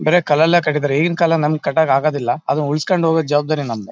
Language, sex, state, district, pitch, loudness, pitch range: Kannada, male, Karnataka, Bellary, 155 Hz, -16 LUFS, 145-165 Hz